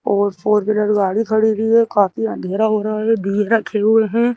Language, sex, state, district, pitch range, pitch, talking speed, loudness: Hindi, female, Madhya Pradesh, Bhopal, 210-225 Hz, 215 Hz, 220 wpm, -17 LUFS